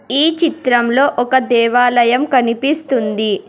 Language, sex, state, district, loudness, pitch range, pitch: Telugu, female, Telangana, Hyderabad, -14 LUFS, 235-280 Hz, 245 Hz